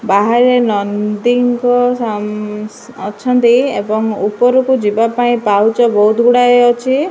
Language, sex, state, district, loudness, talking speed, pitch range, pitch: Odia, male, Odisha, Malkangiri, -12 LUFS, 100 wpm, 210-245 Hz, 235 Hz